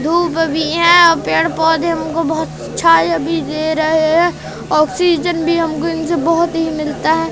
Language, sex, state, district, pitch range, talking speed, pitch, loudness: Hindi, female, Madhya Pradesh, Katni, 315-335 Hz, 170 wpm, 325 Hz, -14 LUFS